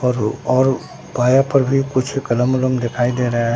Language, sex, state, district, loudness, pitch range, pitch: Hindi, male, Bihar, Katihar, -17 LUFS, 120-135 Hz, 130 Hz